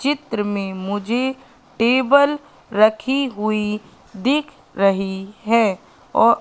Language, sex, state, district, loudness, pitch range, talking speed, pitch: Hindi, female, Madhya Pradesh, Katni, -19 LUFS, 205-265 Hz, 95 wpm, 225 Hz